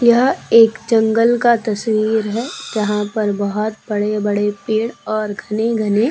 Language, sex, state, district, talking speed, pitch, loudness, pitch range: Hindi, female, Uttar Pradesh, Hamirpur, 135 wpm, 220 Hz, -17 LUFS, 210-230 Hz